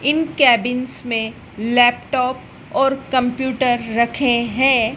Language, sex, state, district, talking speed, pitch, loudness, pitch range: Hindi, female, Madhya Pradesh, Dhar, 95 wpm, 250 Hz, -18 LUFS, 235-265 Hz